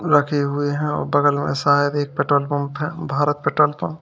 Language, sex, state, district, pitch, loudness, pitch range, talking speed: Hindi, male, Uttar Pradesh, Lalitpur, 145 Hz, -20 LUFS, 145-150 Hz, 225 wpm